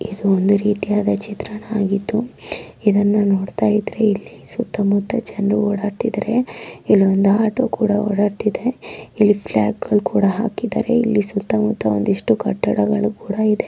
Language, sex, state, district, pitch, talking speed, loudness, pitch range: Kannada, female, Karnataka, Gulbarga, 205 Hz, 135 wpm, -19 LUFS, 200-215 Hz